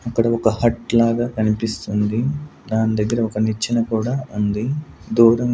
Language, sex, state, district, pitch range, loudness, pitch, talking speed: Telugu, male, Andhra Pradesh, Sri Satya Sai, 110-120 Hz, -20 LUFS, 115 Hz, 130 wpm